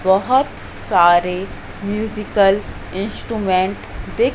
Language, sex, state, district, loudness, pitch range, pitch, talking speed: Hindi, female, Madhya Pradesh, Katni, -18 LUFS, 185-215 Hz, 200 Hz, 70 wpm